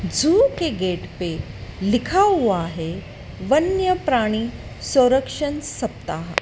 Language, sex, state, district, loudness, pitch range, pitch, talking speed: Hindi, female, Madhya Pradesh, Dhar, -21 LUFS, 190-315 Hz, 255 Hz, 105 wpm